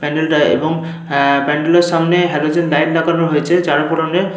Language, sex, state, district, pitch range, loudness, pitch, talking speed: Bengali, male, West Bengal, Paschim Medinipur, 150-170 Hz, -14 LUFS, 160 Hz, 165 wpm